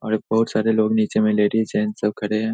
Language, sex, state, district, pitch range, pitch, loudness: Hindi, male, Bihar, Saharsa, 105-110 Hz, 110 Hz, -20 LUFS